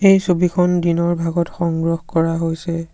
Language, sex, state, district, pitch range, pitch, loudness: Assamese, male, Assam, Sonitpur, 165-180 Hz, 170 Hz, -18 LUFS